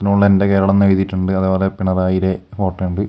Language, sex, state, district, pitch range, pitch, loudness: Malayalam, male, Kerala, Kasaragod, 95-100 Hz, 95 Hz, -16 LUFS